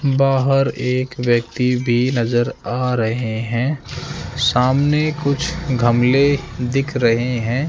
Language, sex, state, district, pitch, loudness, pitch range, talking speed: Hindi, male, Rajasthan, Jaipur, 125 Hz, -18 LUFS, 120-135 Hz, 110 wpm